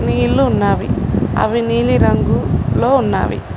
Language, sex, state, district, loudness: Telugu, female, Telangana, Mahabubabad, -15 LUFS